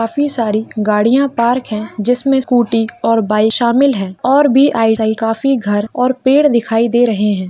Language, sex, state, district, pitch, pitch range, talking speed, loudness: Hindi, female, Chhattisgarh, Bilaspur, 230 Hz, 215-260 Hz, 170 wpm, -13 LUFS